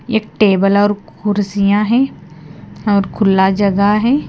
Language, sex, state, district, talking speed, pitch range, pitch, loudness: Hindi, female, Himachal Pradesh, Shimla, 125 wpm, 200-215 Hz, 205 Hz, -14 LUFS